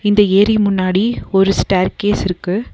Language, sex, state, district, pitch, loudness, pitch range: Tamil, female, Tamil Nadu, Nilgiris, 195 Hz, -15 LUFS, 190-210 Hz